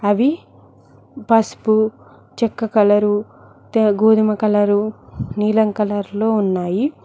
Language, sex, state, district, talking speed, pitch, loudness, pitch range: Telugu, female, Telangana, Mahabubabad, 85 wpm, 215 Hz, -17 LUFS, 205-220 Hz